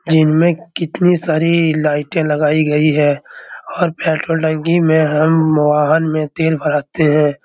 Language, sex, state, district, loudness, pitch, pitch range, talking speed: Hindi, male, Bihar, Araria, -14 LUFS, 155 Hz, 150-165 Hz, 135 wpm